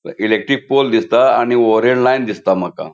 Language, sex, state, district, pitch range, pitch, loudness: Konkani, male, Goa, North and South Goa, 110-130 Hz, 120 Hz, -14 LUFS